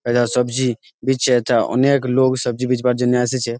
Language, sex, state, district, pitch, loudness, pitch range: Bengali, male, West Bengal, Malda, 125 Hz, -18 LUFS, 120-130 Hz